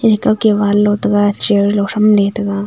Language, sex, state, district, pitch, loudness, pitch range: Wancho, female, Arunachal Pradesh, Longding, 205 Hz, -13 LUFS, 205-215 Hz